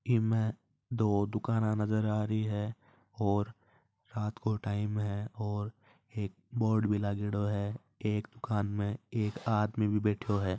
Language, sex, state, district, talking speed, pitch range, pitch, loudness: Marwari, male, Rajasthan, Nagaur, 155 wpm, 105-110 Hz, 105 Hz, -33 LUFS